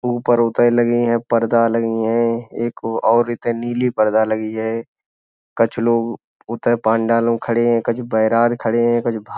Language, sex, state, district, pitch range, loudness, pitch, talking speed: Hindi, male, Uttar Pradesh, Budaun, 115-120 Hz, -18 LUFS, 115 Hz, 180 wpm